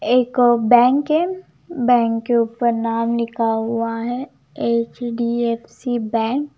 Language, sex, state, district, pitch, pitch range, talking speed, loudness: Hindi, female, Punjab, Kapurthala, 235 Hz, 230-245 Hz, 120 wpm, -19 LUFS